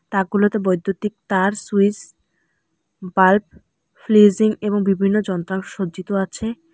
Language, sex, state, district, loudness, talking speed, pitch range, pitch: Bengali, female, West Bengal, Alipurduar, -19 LUFS, 100 wpm, 190-210 Hz, 200 Hz